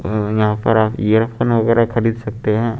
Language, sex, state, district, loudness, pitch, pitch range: Hindi, male, Chandigarh, Chandigarh, -17 LUFS, 110 Hz, 110-115 Hz